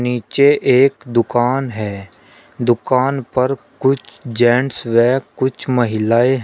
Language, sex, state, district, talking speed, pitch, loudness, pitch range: Hindi, male, Uttar Pradesh, Shamli, 100 wpm, 125 Hz, -16 LUFS, 120-130 Hz